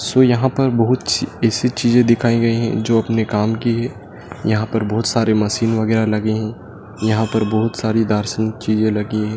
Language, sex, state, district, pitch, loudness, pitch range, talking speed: Hindi, male, Madhya Pradesh, Dhar, 110 Hz, -17 LUFS, 110-115 Hz, 190 wpm